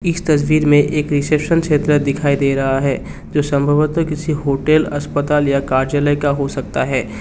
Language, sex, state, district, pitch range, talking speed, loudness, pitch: Hindi, male, Assam, Kamrup Metropolitan, 140-150 Hz, 175 wpm, -16 LUFS, 145 Hz